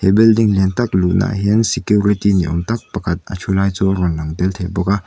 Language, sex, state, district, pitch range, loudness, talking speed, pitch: Mizo, male, Mizoram, Aizawl, 90-105 Hz, -16 LUFS, 260 wpm, 95 Hz